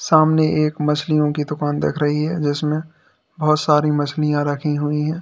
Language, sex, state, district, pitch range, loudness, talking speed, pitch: Hindi, male, Uttar Pradesh, Lalitpur, 150-155 Hz, -19 LUFS, 160 wpm, 150 Hz